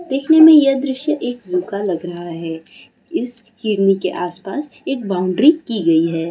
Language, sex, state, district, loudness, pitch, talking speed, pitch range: Hindi, female, West Bengal, Kolkata, -17 LUFS, 220 Hz, 180 wpm, 180-275 Hz